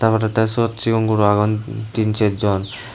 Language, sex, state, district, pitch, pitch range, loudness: Chakma, male, Tripura, Unakoti, 110 Hz, 105-115 Hz, -19 LUFS